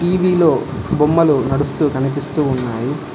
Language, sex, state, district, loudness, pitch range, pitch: Telugu, male, Telangana, Hyderabad, -16 LUFS, 135-160 Hz, 145 Hz